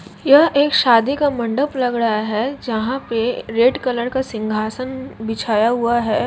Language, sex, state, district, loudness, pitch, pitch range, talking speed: Hindi, female, Jharkhand, Jamtara, -18 LUFS, 240 Hz, 225-265 Hz, 170 wpm